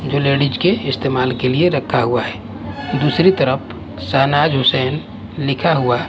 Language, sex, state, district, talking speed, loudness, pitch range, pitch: Hindi, male, Bihar, West Champaran, 155 wpm, -16 LUFS, 120-145 Hz, 135 Hz